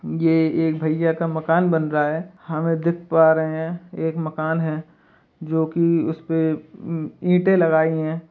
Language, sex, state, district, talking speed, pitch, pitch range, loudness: Hindi, male, Uttar Pradesh, Jalaun, 165 wpm, 160 Hz, 160-165 Hz, -21 LUFS